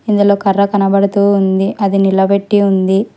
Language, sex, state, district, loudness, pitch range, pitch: Telugu, male, Telangana, Hyderabad, -12 LUFS, 195-200 Hz, 200 Hz